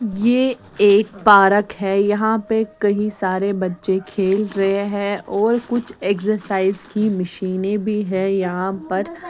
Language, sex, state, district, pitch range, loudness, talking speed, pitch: Hindi, female, Bihar, West Champaran, 195-215 Hz, -19 LUFS, 140 wpm, 200 Hz